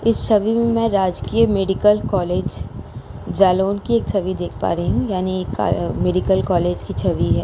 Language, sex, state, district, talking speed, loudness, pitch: Hindi, female, Uttar Pradesh, Jalaun, 170 wpm, -19 LUFS, 190 Hz